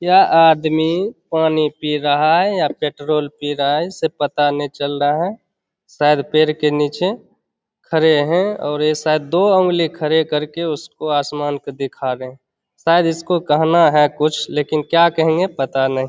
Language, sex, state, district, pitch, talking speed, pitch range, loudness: Hindi, male, Bihar, Begusarai, 155 Hz, 170 wpm, 145-165 Hz, -17 LUFS